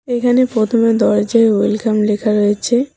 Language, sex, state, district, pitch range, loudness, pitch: Bengali, female, West Bengal, Alipurduar, 210-240 Hz, -14 LUFS, 225 Hz